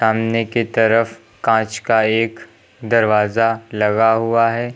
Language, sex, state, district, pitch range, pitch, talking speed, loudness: Hindi, male, Uttar Pradesh, Lucknow, 110-115 Hz, 115 Hz, 125 wpm, -17 LUFS